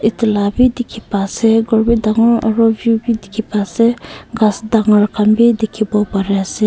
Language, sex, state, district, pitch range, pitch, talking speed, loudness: Nagamese, female, Nagaland, Kohima, 210-230 Hz, 220 Hz, 200 wpm, -14 LUFS